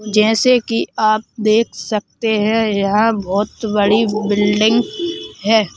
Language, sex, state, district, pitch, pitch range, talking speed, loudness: Hindi, male, Madhya Pradesh, Bhopal, 215 Hz, 210-225 Hz, 115 wpm, -16 LUFS